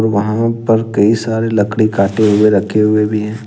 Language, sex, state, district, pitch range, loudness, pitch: Hindi, male, Jharkhand, Ranchi, 105-110 Hz, -13 LUFS, 110 Hz